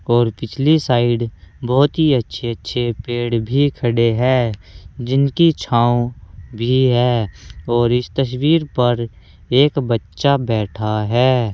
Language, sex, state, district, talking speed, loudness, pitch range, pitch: Hindi, male, Uttar Pradesh, Saharanpur, 120 wpm, -17 LUFS, 115-130 Hz, 120 Hz